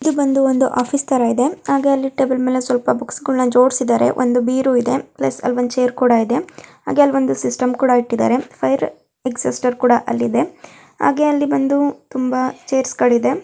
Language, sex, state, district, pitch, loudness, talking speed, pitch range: Kannada, female, Karnataka, Mysore, 255 Hz, -17 LUFS, 175 wpm, 245-275 Hz